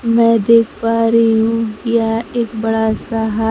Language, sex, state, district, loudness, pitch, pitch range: Hindi, female, Bihar, Kaimur, -15 LUFS, 225 Hz, 225-230 Hz